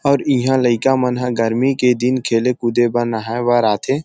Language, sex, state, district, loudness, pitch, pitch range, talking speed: Chhattisgarhi, male, Chhattisgarh, Rajnandgaon, -16 LUFS, 125 Hz, 120-130 Hz, 225 wpm